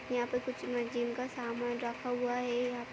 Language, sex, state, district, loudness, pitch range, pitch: Hindi, female, Uttar Pradesh, Jyotiba Phule Nagar, -36 LUFS, 240-245 Hz, 245 Hz